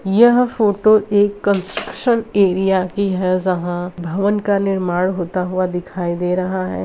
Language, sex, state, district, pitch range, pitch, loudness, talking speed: Hindi, female, Bihar, Purnia, 180-205 Hz, 190 Hz, -17 LUFS, 160 wpm